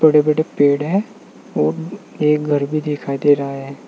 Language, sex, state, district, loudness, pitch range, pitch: Hindi, male, Uttar Pradesh, Saharanpur, -18 LUFS, 140-155 Hz, 150 Hz